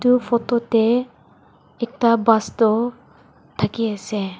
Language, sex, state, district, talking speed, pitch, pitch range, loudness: Nagamese, female, Nagaland, Dimapur, 110 wpm, 230 Hz, 220-240 Hz, -20 LUFS